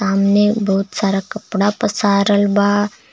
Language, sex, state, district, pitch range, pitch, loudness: Bhojpuri, male, Jharkhand, Palamu, 200-205 Hz, 205 Hz, -16 LUFS